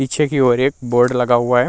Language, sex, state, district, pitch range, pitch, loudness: Hindi, male, Bihar, Vaishali, 120-135 Hz, 125 Hz, -16 LUFS